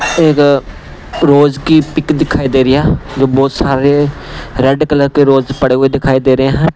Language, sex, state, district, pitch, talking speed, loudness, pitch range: Hindi, male, Punjab, Pathankot, 140 Hz, 180 wpm, -11 LUFS, 135-150 Hz